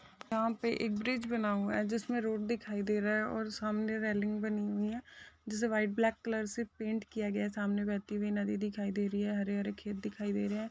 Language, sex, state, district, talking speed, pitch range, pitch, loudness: Hindi, female, Bihar, Saharsa, 240 wpm, 205-225 Hz, 215 Hz, -35 LUFS